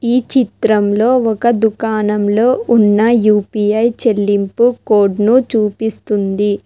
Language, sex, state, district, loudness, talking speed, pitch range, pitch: Telugu, female, Telangana, Hyderabad, -13 LUFS, 80 wpm, 210-235 Hz, 220 Hz